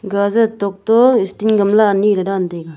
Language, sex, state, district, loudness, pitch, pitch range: Wancho, female, Arunachal Pradesh, Longding, -14 LUFS, 200 Hz, 195-220 Hz